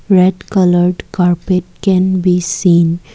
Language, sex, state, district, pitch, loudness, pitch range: English, female, Assam, Kamrup Metropolitan, 180 Hz, -13 LUFS, 175-185 Hz